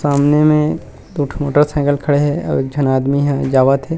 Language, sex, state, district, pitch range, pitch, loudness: Chhattisgarhi, male, Chhattisgarh, Rajnandgaon, 140-150 Hz, 145 Hz, -15 LUFS